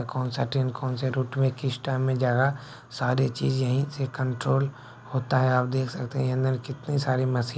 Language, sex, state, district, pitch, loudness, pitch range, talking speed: Maithili, male, Bihar, Begusarai, 130 Hz, -26 LUFS, 130-135 Hz, 220 wpm